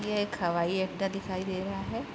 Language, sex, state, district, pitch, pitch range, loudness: Hindi, female, Uttar Pradesh, Gorakhpur, 190 Hz, 185-195 Hz, -32 LUFS